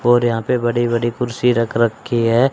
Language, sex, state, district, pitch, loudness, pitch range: Hindi, male, Haryana, Rohtak, 120 Hz, -17 LUFS, 115-120 Hz